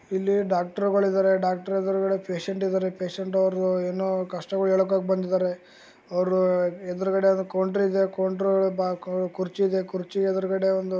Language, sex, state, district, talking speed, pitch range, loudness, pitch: Kannada, male, Karnataka, Gulbarga, 125 wpm, 185-195 Hz, -25 LUFS, 190 Hz